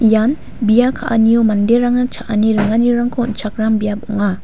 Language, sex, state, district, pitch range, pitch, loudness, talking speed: Garo, female, Meghalaya, West Garo Hills, 215-240 Hz, 225 Hz, -15 LUFS, 120 wpm